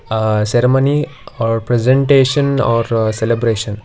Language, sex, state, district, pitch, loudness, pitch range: English, male, Karnataka, Bangalore, 115 Hz, -14 LUFS, 110-135 Hz